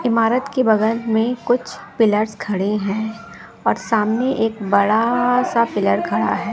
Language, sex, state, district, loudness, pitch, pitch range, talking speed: Hindi, female, Bihar, West Champaran, -18 LUFS, 225 Hz, 210-240 Hz, 145 wpm